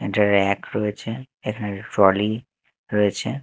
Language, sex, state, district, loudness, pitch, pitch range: Bengali, male, Chhattisgarh, Raipur, -22 LUFS, 105 Hz, 100-110 Hz